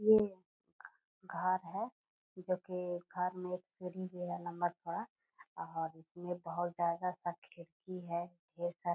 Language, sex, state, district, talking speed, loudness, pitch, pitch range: Hindi, female, Bihar, Purnia, 155 wpm, -39 LUFS, 180 Hz, 175-185 Hz